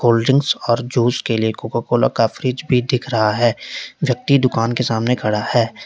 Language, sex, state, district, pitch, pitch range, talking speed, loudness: Hindi, male, Uttar Pradesh, Lalitpur, 120 Hz, 115-125 Hz, 205 wpm, -18 LUFS